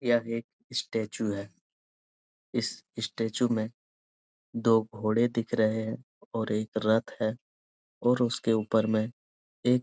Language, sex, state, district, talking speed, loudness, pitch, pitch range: Hindi, male, Bihar, Jahanabad, 135 wpm, -30 LUFS, 110 Hz, 110-115 Hz